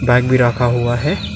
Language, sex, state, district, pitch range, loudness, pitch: Hindi, male, Arunachal Pradesh, Lower Dibang Valley, 120-125 Hz, -15 LUFS, 120 Hz